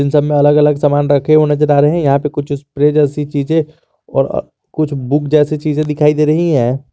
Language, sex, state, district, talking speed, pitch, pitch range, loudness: Hindi, male, Jharkhand, Garhwa, 200 wpm, 150 Hz, 145-150 Hz, -13 LUFS